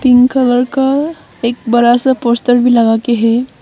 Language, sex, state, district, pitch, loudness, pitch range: Hindi, female, Arunachal Pradesh, Longding, 245 Hz, -12 LUFS, 235-260 Hz